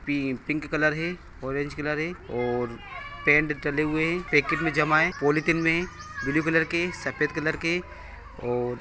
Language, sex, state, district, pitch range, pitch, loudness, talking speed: Hindi, male, Bihar, Purnia, 135-160 Hz, 150 Hz, -25 LUFS, 170 wpm